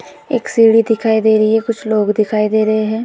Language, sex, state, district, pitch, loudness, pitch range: Hindi, female, Uttar Pradesh, Budaun, 220 Hz, -14 LUFS, 215-225 Hz